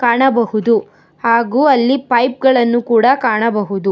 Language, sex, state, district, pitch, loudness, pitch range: Kannada, female, Karnataka, Bangalore, 240 Hz, -14 LUFS, 230-260 Hz